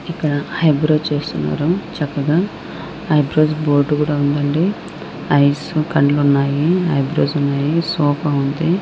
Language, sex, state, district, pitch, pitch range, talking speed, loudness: Telugu, male, Andhra Pradesh, Anantapur, 150 Hz, 145-160 Hz, 120 wpm, -17 LUFS